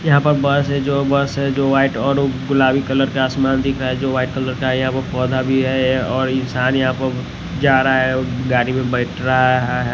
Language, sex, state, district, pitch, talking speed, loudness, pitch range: Hindi, male, Odisha, Nuapada, 130 Hz, 235 wpm, -17 LUFS, 130-135 Hz